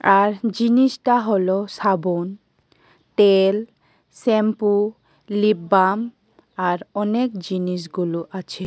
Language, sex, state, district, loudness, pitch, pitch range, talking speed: Bengali, female, Tripura, West Tripura, -20 LUFS, 205 Hz, 185-220 Hz, 90 wpm